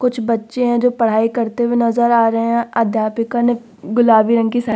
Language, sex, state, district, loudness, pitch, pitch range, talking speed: Hindi, female, Uttar Pradesh, Muzaffarnagar, -16 LUFS, 235 Hz, 225-240 Hz, 225 wpm